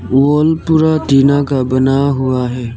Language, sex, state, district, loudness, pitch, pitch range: Hindi, male, Arunachal Pradesh, Lower Dibang Valley, -13 LUFS, 135 Hz, 130-150 Hz